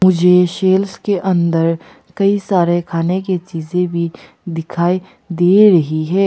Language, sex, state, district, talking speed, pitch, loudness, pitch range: Hindi, female, Arunachal Pradesh, Papum Pare, 135 wpm, 180 Hz, -15 LUFS, 170-190 Hz